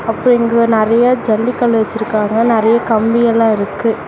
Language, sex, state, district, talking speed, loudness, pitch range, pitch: Tamil, female, Tamil Nadu, Namakkal, 120 wpm, -13 LUFS, 220-235 Hz, 230 Hz